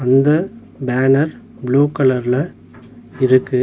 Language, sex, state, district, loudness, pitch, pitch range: Tamil, male, Tamil Nadu, Nilgiris, -16 LUFS, 130 Hz, 125-140 Hz